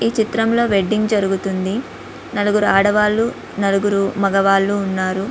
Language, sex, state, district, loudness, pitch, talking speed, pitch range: Telugu, female, Andhra Pradesh, Visakhapatnam, -17 LUFS, 205 Hz, 80 wpm, 195-215 Hz